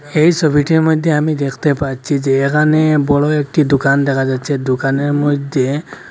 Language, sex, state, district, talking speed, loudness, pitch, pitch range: Bengali, male, Assam, Hailakandi, 145 wpm, -14 LUFS, 145 Hz, 140-155 Hz